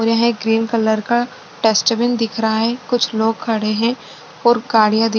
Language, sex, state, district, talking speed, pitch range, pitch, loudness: Hindi, female, Maharashtra, Aurangabad, 210 wpm, 220-235 Hz, 225 Hz, -17 LUFS